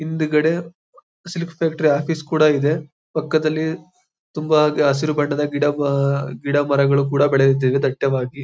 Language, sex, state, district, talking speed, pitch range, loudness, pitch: Kannada, male, Karnataka, Mysore, 120 wpm, 140-155 Hz, -19 LUFS, 150 Hz